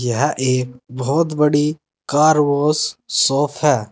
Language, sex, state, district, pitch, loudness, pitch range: Hindi, male, Uttar Pradesh, Saharanpur, 145 Hz, -17 LUFS, 130-150 Hz